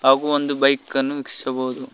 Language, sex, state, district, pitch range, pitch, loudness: Kannada, male, Karnataka, Koppal, 130-140 Hz, 135 Hz, -21 LUFS